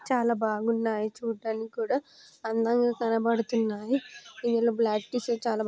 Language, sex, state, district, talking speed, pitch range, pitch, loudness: Telugu, female, Telangana, Nalgonda, 105 wpm, 225-240 Hz, 230 Hz, -28 LUFS